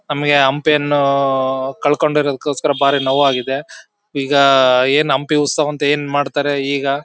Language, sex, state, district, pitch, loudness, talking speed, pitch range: Kannada, male, Karnataka, Bellary, 145 Hz, -15 LUFS, 135 wpm, 135-145 Hz